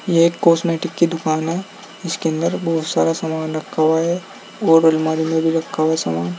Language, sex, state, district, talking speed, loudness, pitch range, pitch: Hindi, male, Uttar Pradesh, Saharanpur, 205 wpm, -18 LUFS, 160-170 Hz, 165 Hz